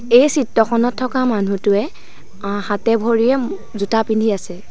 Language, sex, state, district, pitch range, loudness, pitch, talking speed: Assamese, female, Assam, Sonitpur, 205-245 Hz, -17 LUFS, 225 Hz, 115 wpm